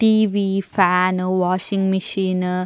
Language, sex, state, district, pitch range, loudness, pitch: Tulu, female, Karnataka, Dakshina Kannada, 185-195 Hz, -19 LUFS, 185 Hz